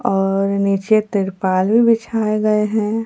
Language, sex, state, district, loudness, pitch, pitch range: Hindi, female, Bihar, Katihar, -17 LUFS, 215 Hz, 195-220 Hz